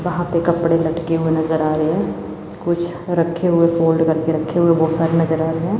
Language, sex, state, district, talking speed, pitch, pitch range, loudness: Hindi, female, Chandigarh, Chandigarh, 230 wpm, 165 Hz, 160-170 Hz, -18 LUFS